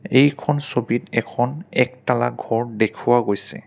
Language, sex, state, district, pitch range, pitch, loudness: Assamese, male, Assam, Kamrup Metropolitan, 115-130 Hz, 120 Hz, -21 LUFS